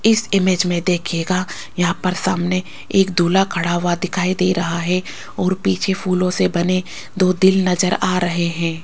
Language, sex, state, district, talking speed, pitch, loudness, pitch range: Hindi, female, Rajasthan, Jaipur, 175 wpm, 180 Hz, -18 LUFS, 175-185 Hz